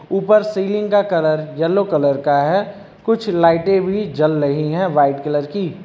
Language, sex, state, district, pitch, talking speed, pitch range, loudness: Hindi, male, Uttar Pradesh, Lucknow, 180 Hz, 175 wpm, 150-200 Hz, -17 LUFS